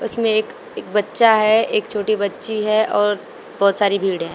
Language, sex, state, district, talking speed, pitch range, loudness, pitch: Hindi, female, Uttar Pradesh, Shamli, 180 wpm, 205-225 Hz, -18 LUFS, 215 Hz